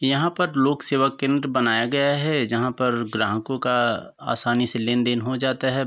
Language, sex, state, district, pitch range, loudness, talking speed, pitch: Hindi, male, Uttar Pradesh, Varanasi, 120-140 Hz, -22 LUFS, 185 wpm, 130 Hz